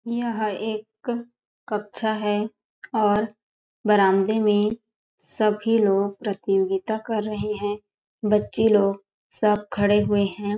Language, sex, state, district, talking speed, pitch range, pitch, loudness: Hindi, female, Chhattisgarh, Sarguja, 110 wpm, 205-220 Hz, 210 Hz, -23 LUFS